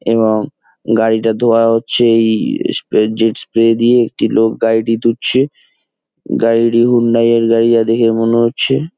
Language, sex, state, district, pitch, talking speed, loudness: Bengali, male, West Bengal, Jalpaiguri, 115 Hz, 145 wpm, -13 LUFS